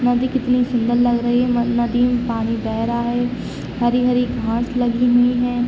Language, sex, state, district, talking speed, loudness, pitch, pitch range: Hindi, female, Jharkhand, Sahebganj, 190 wpm, -18 LUFS, 245 Hz, 235-245 Hz